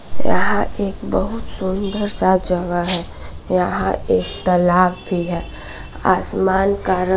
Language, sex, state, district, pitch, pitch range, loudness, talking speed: Hindi, female, Bihar, West Champaran, 185 Hz, 175-190 Hz, -19 LUFS, 125 wpm